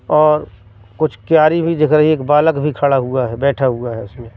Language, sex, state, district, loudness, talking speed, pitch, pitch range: Hindi, male, Madhya Pradesh, Katni, -15 LUFS, 205 wpm, 140 Hz, 120-155 Hz